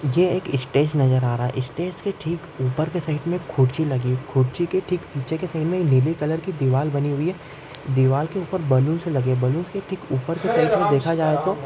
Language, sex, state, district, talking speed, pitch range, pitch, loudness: Hindi, male, Telangana, Nalgonda, 235 wpm, 135-175 Hz, 155 Hz, -22 LUFS